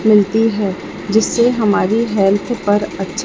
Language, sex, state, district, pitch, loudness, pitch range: Hindi, male, Chhattisgarh, Raipur, 210 Hz, -15 LUFS, 200-225 Hz